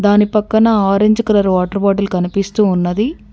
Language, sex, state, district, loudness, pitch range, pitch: Telugu, female, Telangana, Mahabubabad, -14 LUFS, 195-215 Hz, 205 Hz